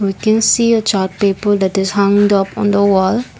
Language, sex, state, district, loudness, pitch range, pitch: English, female, Assam, Kamrup Metropolitan, -13 LUFS, 195-215 Hz, 200 Hz